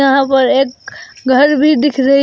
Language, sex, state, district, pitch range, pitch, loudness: Hindi, female, Jharkhand, Garhwa, 270-295 Hz, 275 Hz, -12 LUFS